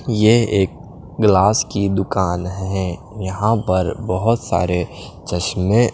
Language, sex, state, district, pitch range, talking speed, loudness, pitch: Hindi, male, Punjab, Pathankot, 90-110 Hz, 110 wpm, -18 LUFS, 95 Hz